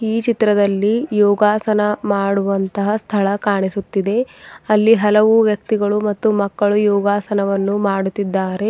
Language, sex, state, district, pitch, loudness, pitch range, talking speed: Kannada, female, Karnataka, Bidar, 205 Hz, -17 LUFS, 200-215 Hz, 90 wpm